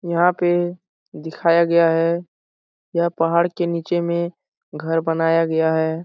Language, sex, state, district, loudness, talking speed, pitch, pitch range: Hindi, male, Bihar, Supaul, -19 LUFS, 140 wpm, 170 Hz, 160-170 Hz